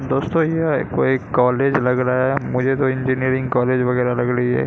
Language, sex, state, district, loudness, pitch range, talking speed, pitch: Hindi, male, Bihar, Katihar, -19 LUFS, 125-135 Hz, 205 wpm, 130 Hz